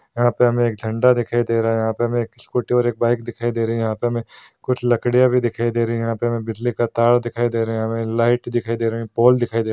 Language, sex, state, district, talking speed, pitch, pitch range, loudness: Hindi, male, Bihar, Madhepura, 325 wpm, 120 Hz, 115-120 Hz, -20 LUFS